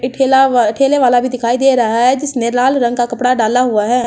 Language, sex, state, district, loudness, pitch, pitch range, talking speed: Hindi, female, Delhi, New Delhi, -13 LUFS, 250 Hz, 240-265 Hz, 280 wpm